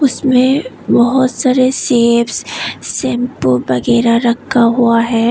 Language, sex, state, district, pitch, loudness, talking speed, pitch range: Hindi, female, Tripura, West Tripura, 240 Hz, -13 LUFS, 90 wpm, 235-255 Hz